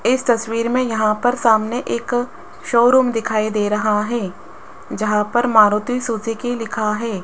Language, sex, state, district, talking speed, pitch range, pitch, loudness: Hindi, female, Rajasthan, Jaipur, 150 wpm, 215-240 Hz, 225 Hz, -18 LUFS